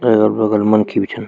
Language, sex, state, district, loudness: Garhwali, male, Uttarakhand, Tehri Garhwal, -15 LUFS